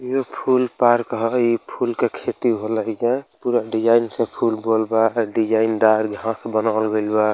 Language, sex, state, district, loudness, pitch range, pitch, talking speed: Hindi, male, Uttar Pradesh, Ghazipur, -20 LUFS, 110-120 Hz, 115 Hz, 180 wpm